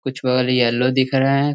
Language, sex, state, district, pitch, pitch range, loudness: Hindi, male, Bihar, Muzaffarpur, 130 Hz, 125-135 Hz, -18 LUFS